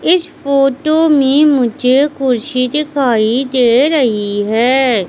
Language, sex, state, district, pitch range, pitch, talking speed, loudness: Hindi, female, Madhya Pradesh, Katni, 240-290 Hz, 265 Hz, 105 wpm, -12 LUFS